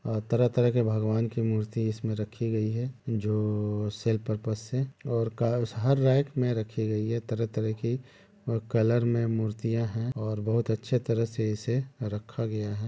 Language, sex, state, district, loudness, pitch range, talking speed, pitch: Hindi, male, Chhattisgarh, Bilaspur, -29 LUFS, 110-120 Hz, 190 wpm, 115 Hz